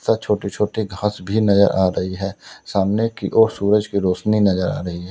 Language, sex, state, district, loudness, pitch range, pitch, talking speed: Hindi, male, Uttar Pradesh, Lalitpur, -19 LUFS, 95-105 Hz, 100 Hz, 210 wpm